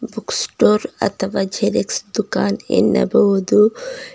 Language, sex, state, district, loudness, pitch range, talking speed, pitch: Kannada, female, Karnataka, Bidar, -17 LUFS, 195-210 Hz, 85 wpm, 205 Hz